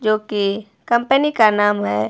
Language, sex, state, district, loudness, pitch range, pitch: Hindi, female, Himachal Pradesh, Shimla, -17 LUFS, 205-235 Hz, 215 Hz